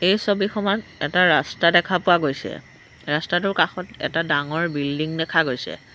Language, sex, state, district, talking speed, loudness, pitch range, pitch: Assamese, female, Assam, Sonitpur, 140 wpm, -21 LUFS, 150-180 Hz, 170 Hz